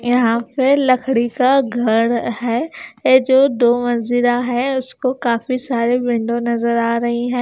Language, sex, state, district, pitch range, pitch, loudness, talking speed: Hindi, female, Himachal Pradesh, Shimla, 235-255 Hz, 245 Hz, -17 LUFS, 155 wpm